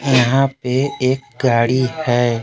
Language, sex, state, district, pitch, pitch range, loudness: Hindi, male, Jharkhand, Palamu, 130 Hz, 120-135 Hz, -17 LUFS